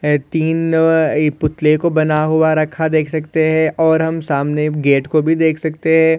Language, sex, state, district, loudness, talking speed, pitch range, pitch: Hindi, male, Maharashtra, Solapur, -15 LUFS, 185 wpm, 150-160 Hz, 160 Hz